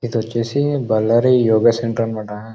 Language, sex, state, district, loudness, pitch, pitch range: Telugu, male, Karnataka, Bellary, -17 LUFS, 115 Hz, 110-120 Hz